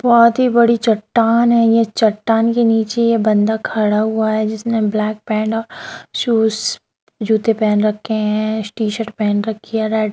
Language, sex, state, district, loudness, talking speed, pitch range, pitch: Hindi, female, Bihar, Darbhanga, -16 LUFS, 120 wpm, 215-230 Hz, 220 Hz